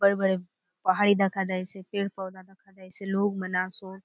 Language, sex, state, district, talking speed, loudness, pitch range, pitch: Halbi, female, Chhattisgarh, Bastar, 190 wpm, -27 LUFS, 185-195 Hz, 190 Hz